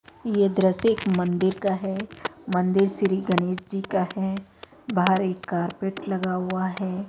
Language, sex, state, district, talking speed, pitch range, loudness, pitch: Hindi, female, Rajasthan, Jaipur, 150 wpm, 185-195 Hz, -25 LUFS, 190 Hz